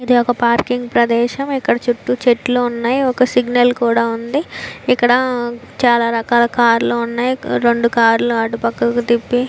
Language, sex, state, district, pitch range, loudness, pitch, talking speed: Telugu, female, Andhra Pradesh, Visakhapatnam, 235-245 Hz, -15 LUFS, 240 Hz, 160 wpm